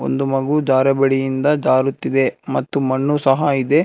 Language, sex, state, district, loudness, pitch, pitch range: Kannada, male, Karnataka, Bangalore, -17 LUFS, 135 Hz, 135-145 Hz